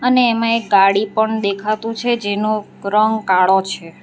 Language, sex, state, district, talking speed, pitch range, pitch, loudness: Gujarati, female, Gujarat, Valsad, 165 wpm, 200-225 Hz, 215 Hz, -16 LUFS